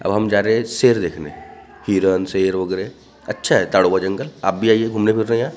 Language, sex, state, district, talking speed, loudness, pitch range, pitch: Hindi, male, Maharashtra, Gondia, 225 wpm, -18 LUFS, 95-110 Hz, 105 Hz